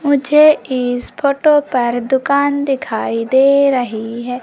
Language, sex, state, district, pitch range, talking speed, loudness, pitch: Hindi, female, Madhya Pradesh, Umaria, 245-285 Hz, 120 wpm, -14 LUFS, 270 Hz